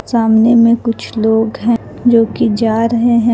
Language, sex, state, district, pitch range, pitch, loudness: Hindi, female, Jharkhand, Palamu, 225-235 Hz, 230 Hz, -12 LUFS